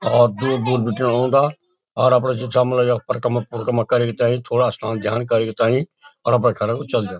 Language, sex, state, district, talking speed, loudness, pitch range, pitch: Garhwali, male, Uttarakhand, Uttarkashi, 215 wpm, -19 LUFS, 115-125 Hz, 125 Hz